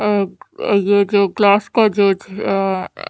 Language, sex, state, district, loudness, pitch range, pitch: Hindi, female, Haryana, Charkhi Dadri, -16 LUFS, 195-210 Hz, 200 Hz